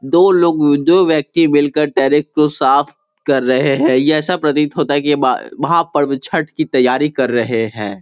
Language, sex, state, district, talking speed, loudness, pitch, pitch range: Hindi, male, Bihar, Gopalganj, 200 wpm, -14 LUFS, 150 Hz, 135-160 Hz